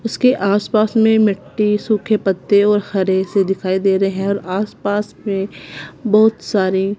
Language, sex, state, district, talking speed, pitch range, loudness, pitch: Hindi, female, Punjab, Kapurthala, 155 wpm, 195-215 Hz, -17 LUFS, 205 Hz